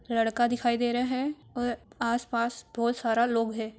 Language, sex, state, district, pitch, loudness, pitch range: Marwari, female, Rajasthan, Churu, 235 Hz, -28 LUFS, 230-245 Hz